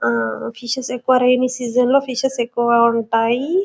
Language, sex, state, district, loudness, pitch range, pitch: Telugu, female, Telangana, Karimnagar, -18 LUFS, 235-255 Hz, 245 Hz